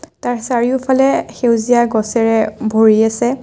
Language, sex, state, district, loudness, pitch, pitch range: Assamese, female, Assam, Kamrup Metropolitan, -14 LUFS, 235 Hz, 220-245 Hz